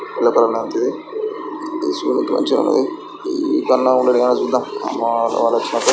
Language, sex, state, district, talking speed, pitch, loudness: Telugu, male, Andhra Pradesh, Srikakulam, 90 wpm, 335 Hz, -18 LUFS